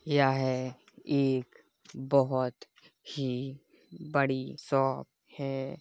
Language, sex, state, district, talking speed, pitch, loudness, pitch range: Hindi, female, Uttar Pradesh, Hamirpur, 70 wpm, 135 Hz, -31 LUFS, 130-140 Hz